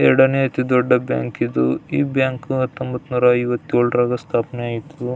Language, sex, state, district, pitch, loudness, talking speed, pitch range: Kannada, male, Karnataka, Belgaum, 125 Hz, -19 LUFS, 130 wpm, 120-130 Hz